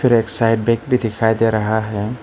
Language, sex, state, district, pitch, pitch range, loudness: Hindi, male, Arunachal Pradesh, Papum Pare, 115 Hz, 110-115 Hz, -17 LUFS